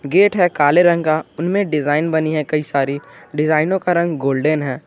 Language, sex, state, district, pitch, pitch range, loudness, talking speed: Hindi, male, Jharkhand, Garhwa, 155 Hz, 145-175 Hz, -17 LUFS, 195 wpm